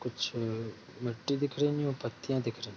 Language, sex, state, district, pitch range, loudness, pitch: Hindi, male, Bihar, Darbhanga, 115-140 Hz, -34 LUFS, 120 Hz